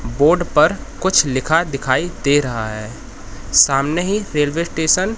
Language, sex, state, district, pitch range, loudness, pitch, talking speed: Hindi, male, Madhya Pradesh, Katni, 130-170 Hz, -17 LUFS, 150 Hz, 150 wpm